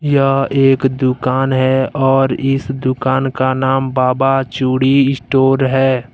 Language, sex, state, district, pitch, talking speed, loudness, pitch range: Hindi, male, Jharkhand, Deoghar, 135 Hz, 135 wpm, -14 LUFS, 130-135 Hz